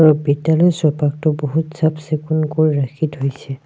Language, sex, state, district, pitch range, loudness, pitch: Assamese, male, Assam, Sonitpur, 145-155 Hz, -18 LUFS, 155 Hz